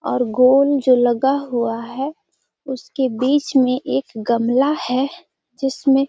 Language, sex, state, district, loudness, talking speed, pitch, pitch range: Hindi, female, Bihar, Gaya, -18 LUFS, 140 wpm, 265 Hz, 250-275 Hz